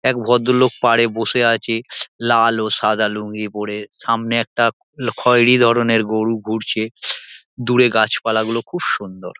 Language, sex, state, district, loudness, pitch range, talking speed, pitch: Bengali, male, West Bengal, Dakshin Dinajpur, -17 LUFS, 110-120 Hz, 135 wpm, 115 Hz